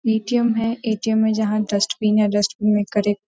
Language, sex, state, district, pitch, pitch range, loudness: Hindi, female, Jharkhand, Sahebganj, 215 Hz, 205-220 Hz, -20 LUFS